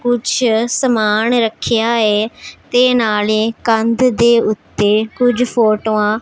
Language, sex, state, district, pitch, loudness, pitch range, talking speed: Punjabi, female, Punjab, Pathankot, 225 Hz, -14 LUFS, 215-245 Hz, 115 wpm